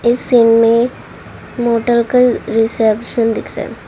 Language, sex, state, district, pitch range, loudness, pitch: Hindi, female, Delhi, New Delhi, 230-240 Hz, -13 LUFS, 235 Hz